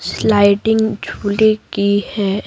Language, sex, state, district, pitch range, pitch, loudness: Hindi, female, Bihar, Patna, 200-220 Hz, 205 Hz, -15 LUFS